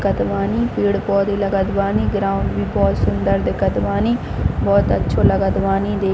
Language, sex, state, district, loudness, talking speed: Hindi, female, Chhattisgarh, Bilaspur, -18 LUFS, 155 wpm